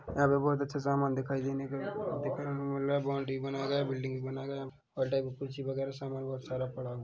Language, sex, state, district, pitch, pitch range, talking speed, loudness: Hindi, male, Chhattisgarh, Bilaspur, 135 Hz, 135-140 Hz, 195 wpm, -34 LUFS